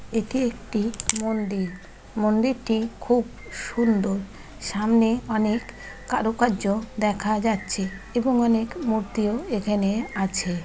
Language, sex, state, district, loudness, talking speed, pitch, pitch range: Bengali, female, West Bengal, Malda, -24 LUFS, 85 wpm, 220 Hz, 200-230 Hz